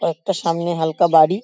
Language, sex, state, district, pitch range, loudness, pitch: Bengali, female, West Bengal, Paschim Medinipur, 160-175 Hz, -18 LUFS, 165 Hz